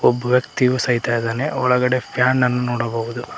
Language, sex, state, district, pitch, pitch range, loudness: Kannada, male, Karnataka, Koppal, 125 Hz, 120-125 Hz, -19 LUFS